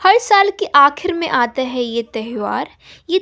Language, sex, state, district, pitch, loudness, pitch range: Hindi, female, Bihar, West Champaran, 285 Hz, -16 LUFS, 240-375 Hz